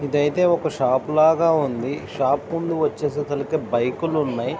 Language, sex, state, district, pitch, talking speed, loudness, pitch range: Telugu, male, Andhra Pradesh, Srikakulam, 150 Hz, 145 wpm, -21 LUFS, 140-160 Hz